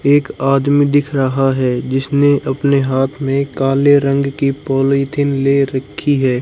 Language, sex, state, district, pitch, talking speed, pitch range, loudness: Hindi, male, Haryana, Jhajjar, 135 Hz, 150 wpm, 135-140 Hz, -15 LUFS